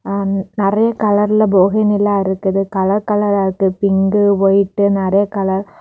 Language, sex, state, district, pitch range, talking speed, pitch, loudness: Tamil, female, Tamil Nadu, Kanyakumari, 195-205 Hz, 135 wpm, 200 Hz, -15 LUFS